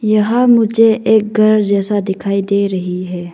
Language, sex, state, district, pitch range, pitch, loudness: Hindi, female, Arunachal Pradesh, Longding, 195-220 Hz, 205 Hz, -13 LUFS